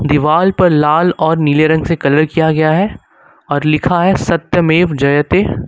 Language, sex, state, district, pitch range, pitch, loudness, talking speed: Hindi, male, Uttar Pradesh, Lucknow, 150-170 Hz, 155 Hz, -12 LUFS, 180 wpm